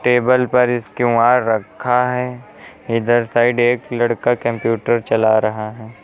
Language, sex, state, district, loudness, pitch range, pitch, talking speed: Hindi, male, Uttar Pradesh, Lucknow, -17 LUFS, 115-125 Hz, 120 Hz, 140 wpm